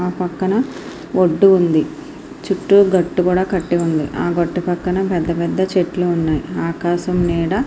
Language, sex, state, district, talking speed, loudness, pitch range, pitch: Telugu, female, Andhra Pradesh, Srikakulam, 135 wpm, -17 LUFS, 170-190 Hz, 180 Hz